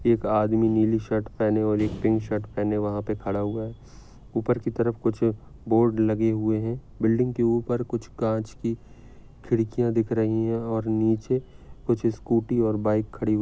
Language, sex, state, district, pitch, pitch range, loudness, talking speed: Hindi, male, Maharashtra, Dhule, 110 Hz, 110-115 Hz, -25 LUFS, 185 wpm